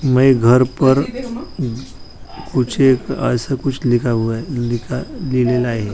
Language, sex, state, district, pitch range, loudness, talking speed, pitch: Marathi, male, Maharashtra, Washim, 120-135 Hz, -17 LUFS, 90 wpm, 125 Hz